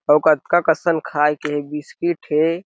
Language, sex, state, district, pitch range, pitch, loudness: Chhattisgarhi, male, Chhattisgarh, Sarguja, 150-170 Hz, 155 Hz, -19 LUFS